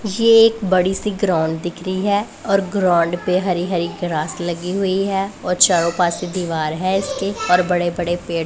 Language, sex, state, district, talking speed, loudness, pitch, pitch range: Hindi, female, Punjab, Pathankot, 190 wpm, -18 LUFS, 180 Hz, 175-195 Hz